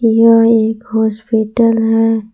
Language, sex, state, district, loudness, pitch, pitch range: Hindi, female, Jharkhand, Palamu, -12 LUFS, 225 Hz, 220-230 Hz